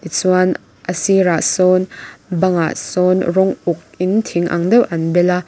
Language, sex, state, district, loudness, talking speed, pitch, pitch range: Mizo, female, Mizoram, Aizawl, -16 LUFS, 185 wpm, 180 Hz, 175-185 Hz